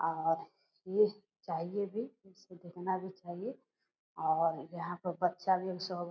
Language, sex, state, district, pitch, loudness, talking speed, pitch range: Hindi, female, Bihar, Purnia, 180 Hz, -36 LUFS, 125 wpm, 175-195 Hz